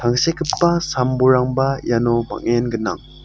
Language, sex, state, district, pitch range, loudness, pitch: Garo, male, Meghalaya, South Garo Hills, 120-135 Hz, -18 LUFS, 125 Hz